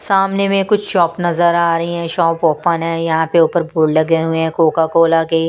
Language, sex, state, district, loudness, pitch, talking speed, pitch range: Hindi, female, Punjab, Kapurthala, -15 LUFS, 165 Hz, 230 wpm, 160-175 Hz